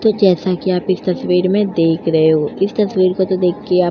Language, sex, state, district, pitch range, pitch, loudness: Hindi, female, Uttar Pradesh, Jyotiba Phule Nagar, 175-190 Hz, 185 Hz, -15 LUFS